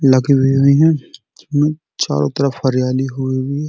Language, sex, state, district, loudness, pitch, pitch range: Hindi, male, Uttar Pradesh, Muzaffarnagar, -16 LUFS, 135 Hz, 130-145 Hz